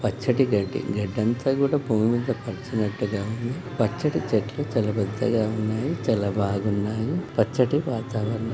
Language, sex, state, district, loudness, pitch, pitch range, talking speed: Telugu, male, Telangana, Nalgonda, -25 LUFS, 115 Hz, 105-130 Hz, 115 wpm